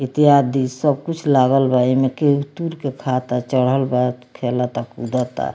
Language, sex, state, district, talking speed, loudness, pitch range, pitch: Bhojpuri, female, Bihar, Muzaffarpur, 150 wpm, -19 LUFS, 125-140 Hz, 130 Hz